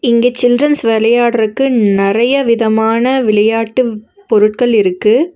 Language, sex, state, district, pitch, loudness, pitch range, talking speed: Tamil, female, Tamil Nadu, Nilgiris, 230 Hz, -12 LUFS, 220-250 Hz, 90 wpm